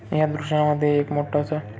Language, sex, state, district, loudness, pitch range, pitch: Marathi, male, Maharashtra, Chandrapur, -22 LUFS, 145-155 Hz, 150 Hz